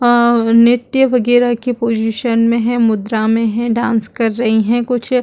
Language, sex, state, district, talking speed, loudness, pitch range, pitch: Hindi, female, Chhattisgarh, Balrampur, 185 wpm, -14 LUFS, 225-245 Hz, 235 Hz